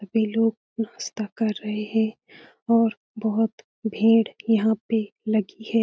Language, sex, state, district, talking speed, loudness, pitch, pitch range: Hindi, female, Bihar, Lakhisarai, 135 wpm, -24 LUFS, 220 Hz, 215-225 Hz